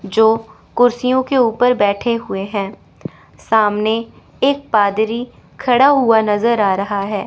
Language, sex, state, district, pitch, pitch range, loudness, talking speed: Hindi, female, Chandigarh, Chandigarh, 220 Hz, 205-245 Hz, -16 LUFS, 130 wpm